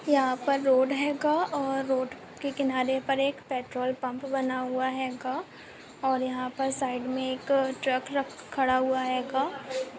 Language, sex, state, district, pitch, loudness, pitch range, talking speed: Hindi, female, Uttar Pradesh, Muzaffarnagar, 265 Hz, -29 LUFS, 255-275 Hz, 155 wpm